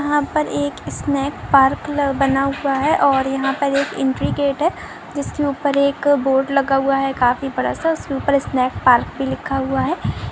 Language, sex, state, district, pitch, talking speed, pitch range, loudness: Hindi, female, Maharashtra, Pune, 275 Hz, 200 wpm, 270-285 Hz, -18 LUFS